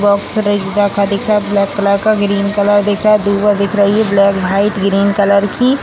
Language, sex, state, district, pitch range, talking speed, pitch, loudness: Hindi, female, Bihar, Sitamarhi, 200-205 Hz, 165 wpm, 200 Hz, -13 LUFS